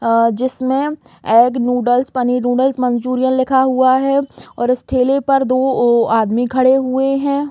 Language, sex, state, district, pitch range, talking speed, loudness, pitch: Hindi, female, Chhattisgarh, Raigarh, 245-265 Hz, 160 wpm, -15 LUFS, 255 Hz